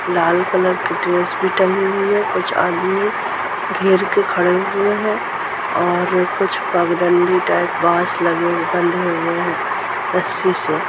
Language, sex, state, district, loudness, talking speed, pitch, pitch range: Hindi, female, Bihar, Purnia, -17 LUFS, 150 wpm, 180 Hz, 175-195 Hz